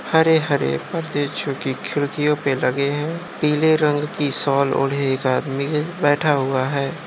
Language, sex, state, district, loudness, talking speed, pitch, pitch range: Hindi, male, Uttar Pradesh, Jyotiba Phule Nagar, -20 LUFS, 180 wpm, 145 Hz, 135-150 Hz